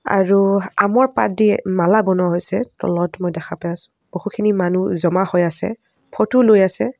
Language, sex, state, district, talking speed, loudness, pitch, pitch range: Assamese, female, Assam, Kamrup Metropolitan, 165 wpm, -17 LUFS, 190 Hz, 180-215 Hz